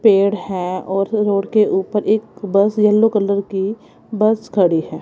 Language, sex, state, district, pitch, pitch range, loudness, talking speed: Hindi, female, Punjab, Kapurthala, 200 Hz, 195-215 Hz, -17 LUFS, 165 wpm